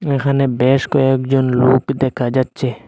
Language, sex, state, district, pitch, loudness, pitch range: Bengali, male, Assam, Hailakandi, 130 Hz, -16 LUFS, 130-135 Hz